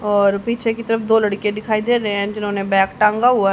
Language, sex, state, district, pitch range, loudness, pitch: Hindi, female, Haryana, Jhajjar, 200-225 Hz, -18 LUFS, 210 Hz